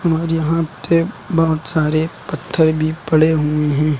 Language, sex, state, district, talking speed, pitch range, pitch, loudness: Hindi, male, Uttar Pradesh, Lucknow, 150 wpm, 155-165 Hz, 160 Hz, -17 LUFS